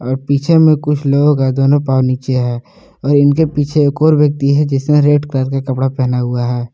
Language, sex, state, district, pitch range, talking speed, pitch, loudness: Hindi, male, Jharkhand, Palamu, 130-145 Hz, 220 wpm, 140 Hz, -13 LUFS